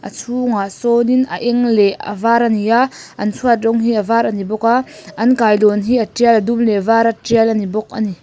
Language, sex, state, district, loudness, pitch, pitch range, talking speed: Mizo, female, Mizoram, Aizawl, -15 LUFS, 230 Hz, 210-235 Hz, 255 wpm